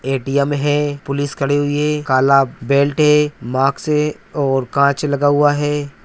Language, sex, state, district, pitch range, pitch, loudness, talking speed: Hindi, male, Bihar, Araria, 140-145 Hz, 145 Hz, -16 LUFS, 160 wpm